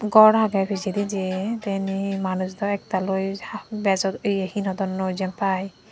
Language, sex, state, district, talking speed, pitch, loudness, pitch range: Chakma, female, Tripura, Dhalai, 150 wpm, 195 Hz, -23 LUFS, 190-205 Hz